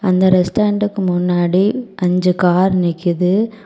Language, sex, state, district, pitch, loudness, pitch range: Tamil, female, Tamil Nadu, Kanyakumari, 185 Hz, -15 LUFS, 180-205 Hz